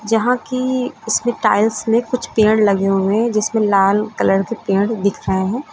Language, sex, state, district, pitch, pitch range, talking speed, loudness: Hindi, female, Uttar Pradesh, Lucknow, 220 Hz, 200-235 Hz, 190 wpm, -17 LUFS